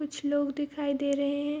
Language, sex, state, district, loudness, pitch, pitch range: Hindi, female, Bihar, Araria, -30 LUFS, 285 Hz, 280-290 Hz